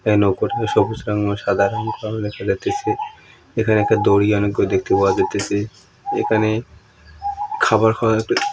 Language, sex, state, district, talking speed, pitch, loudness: Bengali, male, West Bengal, Purulia, 155 wpm, 110 Hz, -19 LUFS